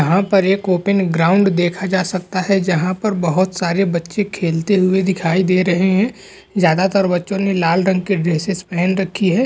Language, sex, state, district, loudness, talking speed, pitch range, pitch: Hindi, male, Maharashtra, Nagpur, -16 LUFS, 195 wpm, 175-195 Hz, 185 Hz